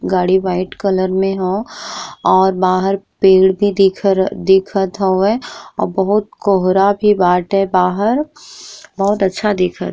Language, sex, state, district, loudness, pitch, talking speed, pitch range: Bhojpuri, female, Bihar, East Champaran, -15 LUFS, 195 Hz, 125 wpm, 185-200 Hz